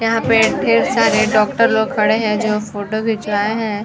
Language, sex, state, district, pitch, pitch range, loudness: Hindi, female, Chhattisgarh, Sarguja, 215 Hz, 210-225 Hz, -16 LUFS